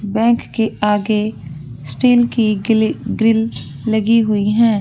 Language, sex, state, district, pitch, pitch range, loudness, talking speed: Hindi, female, Rajasthan, Churu, 220 Hz, 210-225 Hz, -16 LUFS, 125 wpm